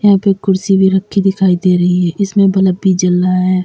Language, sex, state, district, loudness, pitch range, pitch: Hindi, female, Uttar Pradesh, Lalitpur, -12 LUFS, 185-195 Hz, 190 Hz